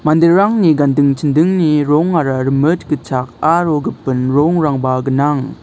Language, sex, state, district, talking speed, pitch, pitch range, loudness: Garo, male, Meghalaya, South Garo Hills, 105 wpm, 150 Hz, 135-160 Hz, -14 LUFS